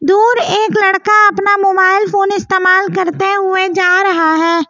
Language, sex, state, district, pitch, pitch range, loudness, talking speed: Hindi, female, Delhi, New Delhi, 385 Hz, 370-400 Hz, -11 LUFS, 155 wpm